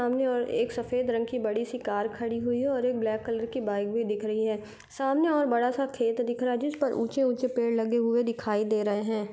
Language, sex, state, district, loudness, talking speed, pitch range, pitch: Hindi, female, Uttar Pradesh, Deoria, -28 LUFS, 265 wpm, 220-250 Hz, 235 Hz